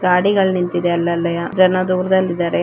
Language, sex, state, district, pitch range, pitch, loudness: Kannada, female, Karnataka, Chamarajanagar, 170-185 Hz, 180 Hz, -16 LUFS